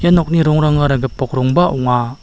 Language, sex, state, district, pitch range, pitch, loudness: Garo, male, Meghalaya, South Garo Hills, 130-165 Hz, 145 Hz, -14 LUFS